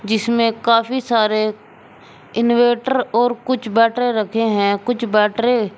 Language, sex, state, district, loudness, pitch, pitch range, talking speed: Hindi, male, Uttar Pradesh, Shamli, -17 LUFS, 230 Hz, 215-240 Hz, 115 wpm